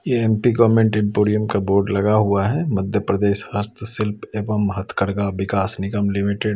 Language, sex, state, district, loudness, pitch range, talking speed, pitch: Hindi, male, Chhattisgarh, Raipur, -20 LUFS, 100-110 Hz, 165 wpm, 105 Hz